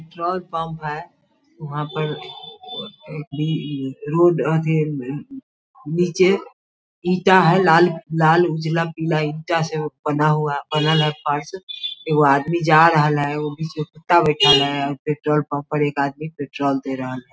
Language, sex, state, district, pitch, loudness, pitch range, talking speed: Hindi, female, Bihar, Sitamarhi, 155 Hz, -19 LUFS, 145-165 Hz, 140 wpm